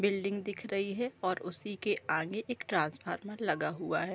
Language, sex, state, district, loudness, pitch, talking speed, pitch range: Hindi, female, Bihar, Supaul, -35 LUFS, 200 Hz, 190 wpm, 195-215 Hz